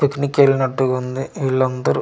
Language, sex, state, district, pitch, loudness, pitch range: Telugu, male, Andhra Pradesh, Manyam, 130 Hz, -18 LUFS, 130-140 Hz